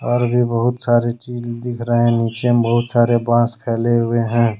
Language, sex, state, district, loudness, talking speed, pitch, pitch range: Hindi, male, Jharkhand, Deoghar, -17 LUFS, 210 wpm, 120 Hz, 115-120 Hz